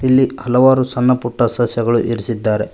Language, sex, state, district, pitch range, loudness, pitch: Kannada, male, Karnataka, Koppal, 115-130 Hz, -15 LUFS, 120 Hz